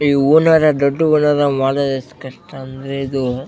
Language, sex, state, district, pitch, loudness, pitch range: Kannada, male, Karnataka, Bellary, 140 Hz, -15 LUFS, 135-150 Hz